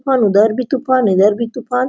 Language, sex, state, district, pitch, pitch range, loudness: Hindi, female, Jharkhand, Sahebganj, 250 Hz, 210-260 Hz, -14 LUFS